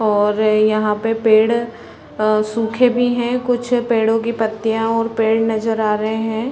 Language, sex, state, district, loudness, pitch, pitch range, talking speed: Hindi, female, Chhattisgarh, Raigarh, -17 LUFS, 225 Hz, 215-230 Hz, 165 wpm